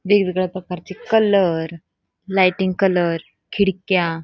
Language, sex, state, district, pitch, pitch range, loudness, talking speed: Marathi, female, Karnataka, Belgaum, 185 Hz, 175-195 Hz, -19 LUFS, 100 wpm